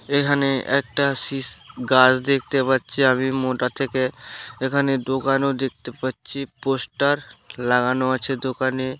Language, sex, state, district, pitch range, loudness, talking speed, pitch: Bengali, male, West Bengal, Dakshin Dinajpur, 130-140 Hz, -21 LUFS, 115 wpm, 130 Hz